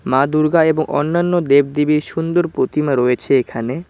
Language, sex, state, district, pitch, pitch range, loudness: Bengali, male, West Bengal, Cooch Behar, 150 Hz, 135-165 Hz, -16 LUFS